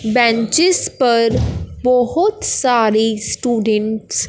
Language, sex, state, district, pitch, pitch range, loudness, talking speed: Hindi, male, Punjab, Fazilka, 235 Hz, 220-250 Hz, -15 LUFS, 85 wpm